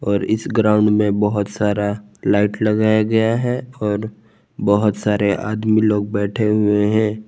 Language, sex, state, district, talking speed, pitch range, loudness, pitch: Hindi, male, Jharkhand, Palamu, 150 wpm, 105-110 Hz, -18 LUFS, 105 Hz